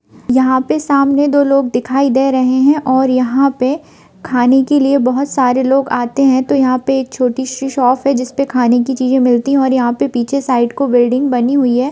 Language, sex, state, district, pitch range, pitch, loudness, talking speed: Hindi, female, Bihar, Purnia, 250-275 Hz, 260 Hz, -13 LUFS, 220 wpm